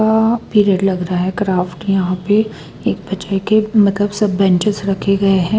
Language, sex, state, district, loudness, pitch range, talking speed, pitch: Hindi, female, Bihar, West Champaran, -16 LUFS, 190-210 Hz, 170 wpm, 195 Hz